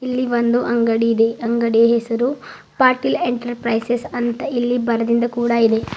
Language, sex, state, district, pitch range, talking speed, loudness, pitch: Kannada, female, Karnataka, Bidar, 230-240 Hz, 130 wpm, -18 LUFS, 235 Hz